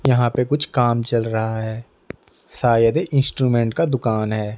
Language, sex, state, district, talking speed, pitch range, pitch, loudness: Hindi, male, Odisha, Nuapada, 170 wpm, 110-130 Hz, 120 Hz, -19 LUFS